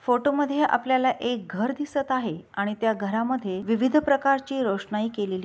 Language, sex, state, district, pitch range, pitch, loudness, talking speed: Marathi, female, Maharashtra, Dhule, 210-275 Hz, 245 Hz, -25 LUFS, 155 wpm